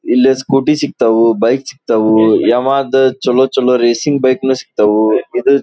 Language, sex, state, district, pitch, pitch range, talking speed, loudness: Kannada, male, Karnataka, Dharwad, 130 Hz, 115-135 Hz, 105 wpm, -12 LUFS